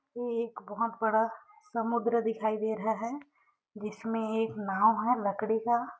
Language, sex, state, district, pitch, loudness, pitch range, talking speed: Hindi, female, Chhattisgarh, Sarguja, 225 Hz, -31 LUFS, 220-235 Hz, 150 wpm